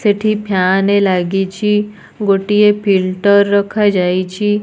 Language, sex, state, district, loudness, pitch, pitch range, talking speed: Odia, female, Odisha, Nuapada, -14 LUFS, 200 Hz, 190-210 Hz, 80 wpm